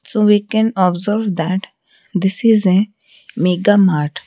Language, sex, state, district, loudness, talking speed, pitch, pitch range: English, female, Odisha, Malkangiri, -16 LUFS, 140 wpm, 195 Hz, 180-215 Hz